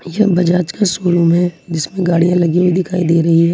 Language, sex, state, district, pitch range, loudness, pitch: Hindi, female, Jharkhand, Ranchi, 170-180 Hz, -14 LUFS, 175 Hz